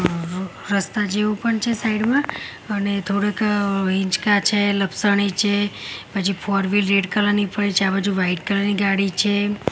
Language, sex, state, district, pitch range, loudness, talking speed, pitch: Gujarati, female, Gujarat, Gandhinagar, 195-205 Hz, -20 LUFS, 160 wpm, 200 Hz